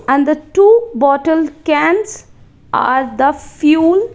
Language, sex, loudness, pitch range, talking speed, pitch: English, female, -13 LUFS, 280-365 Hz, 115 wpm, 305 Hz